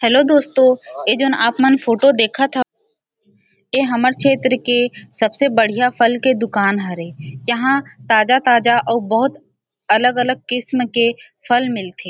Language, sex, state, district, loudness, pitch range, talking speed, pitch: Chhattisgarhi, female, Chhattisgarh, Rajnandgaon, -15 LUFS, 230-265 Hz, 140 wpm, 245 Hz